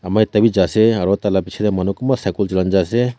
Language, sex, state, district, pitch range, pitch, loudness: Nagamese, male, Nagaland, Kohima, 95-110 Hz, 100 Hz, -17 LUFS